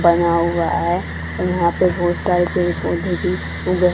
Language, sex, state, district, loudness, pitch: Hindi, female, Haryana, Charkhi Dadri, -19 LUFS, 170 Hz